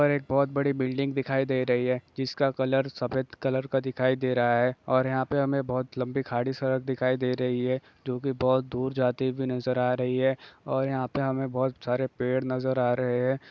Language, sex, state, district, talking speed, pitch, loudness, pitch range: Hindi, male, Bihar, Saran, 230 wpm, 130 Hz, -27 LUFS, 125-135 Hz